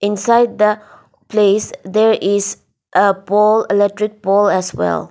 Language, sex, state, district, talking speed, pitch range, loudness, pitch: English, female, Nagaland, Dimapur, 130 wpm, 200-215 Hz, -15 LUFS, 205 Hz